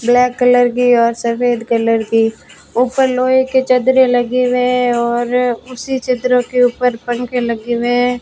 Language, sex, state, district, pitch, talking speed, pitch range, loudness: Hindi, female, Rajasthan, Bikaner, 245 Hz, 160 wpm, 240-250 Hz, -14 LUFS